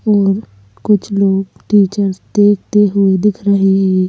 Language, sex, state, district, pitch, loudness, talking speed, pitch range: Hindi, female, Madhya Pradesh, Bhopal, 200 Hz, -13 LUFS, 130 wpm, 190-205 Hz